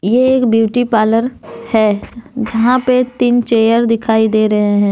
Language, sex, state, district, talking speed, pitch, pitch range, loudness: Hindi, female, Jharkhand, Deoghar, 160 wpm, 230 Hz, 220-245 Hz, -13 LUFS